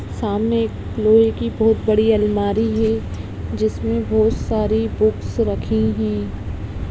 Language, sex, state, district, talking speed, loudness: Hindi, female, Bihar, Darbhanga, 120 wpm, -19 LUFS